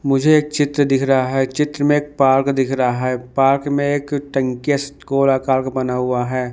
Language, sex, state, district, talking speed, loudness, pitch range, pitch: Hindi, male, Madhya Pradesh, Dhar, 210 wpm, -17 LUFS, 130-145 Hz, 135 Hz